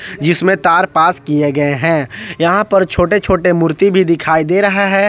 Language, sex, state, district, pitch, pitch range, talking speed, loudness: Hindi, male, Jharkhand, Ranchi, 175 Hz, 160-195 Hz, 190 wpm, -12 LUFS